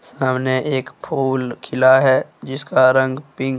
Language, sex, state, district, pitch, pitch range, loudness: Hindi, male, Jharkhand, Deoghar, 130 Hz, 130-135 Hz, -17 LUFS